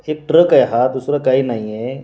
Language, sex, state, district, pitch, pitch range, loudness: Marathi, male, Maharashtra, Washim, 130 Hz, 120-150 Hz, -15 LUFS